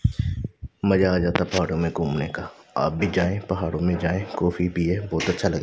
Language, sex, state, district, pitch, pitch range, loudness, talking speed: Hindi, male, Punjab, Pathankot, 90 Hz, 85-100 Hz, -24 LUFS, 205 wpm